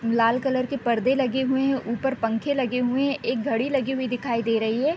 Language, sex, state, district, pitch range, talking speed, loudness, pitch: Hindi, female, Uttar Pradesh, Deoria, 235-270 Hz, 240 wpm, -24 LUFS, 255 Hz